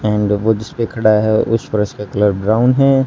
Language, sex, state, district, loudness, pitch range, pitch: Hindi, male, Haryana, Charkhi Dadri, -15 LUFS, 105-115 Hz, 110 Hz